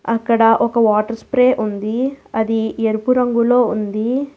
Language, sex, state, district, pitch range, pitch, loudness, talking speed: Telugu, female, Telangana, Hyderabad, 220-250 Hz, 230 Hz, -16 LUFS, 125 wpm